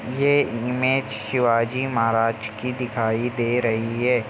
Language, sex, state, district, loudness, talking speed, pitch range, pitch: Hindi, male, Bihar, Jamui, -22 LUFS, 140 wpm, 115-125 Hz, 120 Hz